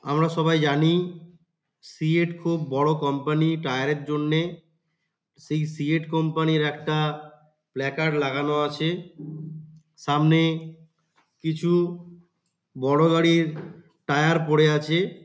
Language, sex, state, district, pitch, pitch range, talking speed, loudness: Bengali, male, West Bengal, Paschim Medinipur, 160 Hz, 150-165 Hz, 100 wpm, -23 LUFS